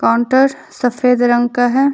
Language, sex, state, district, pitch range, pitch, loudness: Hindi, female, Jharkhand, Deoghar, 240-260 Hz, 245 Hz, -14 LUFS